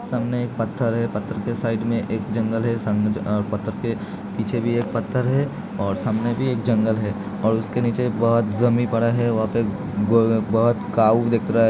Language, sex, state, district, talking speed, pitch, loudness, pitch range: Hindi, male, Uttar Pradesh, Hamirpur, 210 wpm, 115 Hz, -22 LUFS, 110-120 Hz